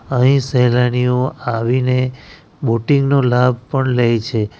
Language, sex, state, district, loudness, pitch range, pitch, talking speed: Gujarati, male, Gujarat, Valsad, -16 LUFS, 120-130 Hz, 125 Hz, 120 wpm